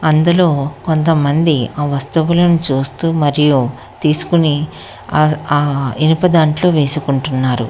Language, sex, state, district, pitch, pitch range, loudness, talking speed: Telugu, female, Telangana, Hyderabad, 150 Hz, 140-160 Hz, -14 LUFS, 95 wpm